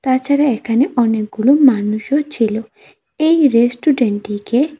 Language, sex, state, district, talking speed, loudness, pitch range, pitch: Bengali, female, Tripura, West Tripura, 100 wpm, -15 LUFS, 220-285 Hz, 245 Hz